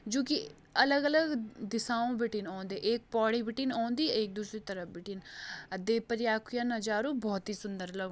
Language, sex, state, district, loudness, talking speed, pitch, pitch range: Hindi, female, Uttarakhand, Uttarkashi, -33 LUFS, 170 wpm, 225 Hz, 205-240 Hz